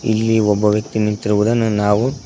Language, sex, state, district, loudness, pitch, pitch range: Kannada, male, Karnataka, Koppal, -16 LUFS, 105 Hz, 105-110 Hz